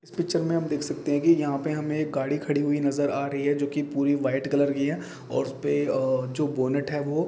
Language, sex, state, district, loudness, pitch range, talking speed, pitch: Hindi, male, Jharkhand, Jamtara, -26 LUFS, 140-150 Hz, 265 wpm, 145 Hz